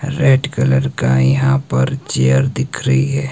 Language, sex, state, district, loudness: Hindi, male, Himachal Pradesh, Shimla, -15 LUFS